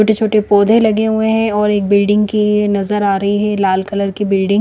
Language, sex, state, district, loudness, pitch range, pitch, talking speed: Hindi, female, Chandigarh, Chandigarh, -14 LUFS, 200-215 Hz, 210 Hz, 235 wpm